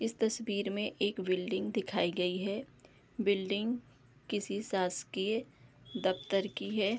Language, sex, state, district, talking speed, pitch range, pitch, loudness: Hindi, female, Bihar, Darbhanga, 120 wpm, 190-215 Hz, 200 Hz, -34 LUFS